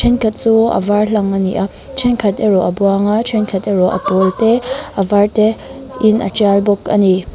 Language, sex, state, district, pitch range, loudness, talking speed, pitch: Mizo, female, Mizoram, Aizawl, 195-225 Hz, -14 LUFS, 220 wpm, 205 Hz